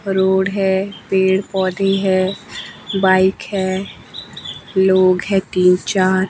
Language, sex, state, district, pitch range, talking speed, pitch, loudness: Hindi, male, Himachal Pradesh, Shimla, 185-195 Hz, 105 wpm, 190 Hz, -16 LUFS